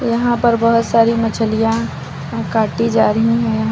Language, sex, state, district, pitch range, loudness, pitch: Hindi, female, Uttar Pradesh, Lucknow, 225-230 Hz, -16 LUFS, 230 Hz